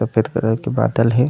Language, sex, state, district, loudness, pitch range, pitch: Chhattisgarhi, male, Chhattisgarh, Raigarh, -18 LUFS, 110-120 Hz, 115 Hz